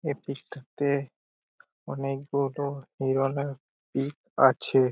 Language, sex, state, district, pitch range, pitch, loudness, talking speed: Bengali, male, West Bengal, Purulia, 135-140 Hz, 140 Hz, -28 LUFS, 100 wpm